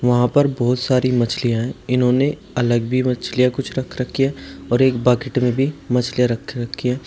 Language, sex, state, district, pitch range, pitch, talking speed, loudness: Hindi, male, Uttar Pradesh, Shamli, 120-130 Hz, 125 Hz, 195 wpm, -19 LUFS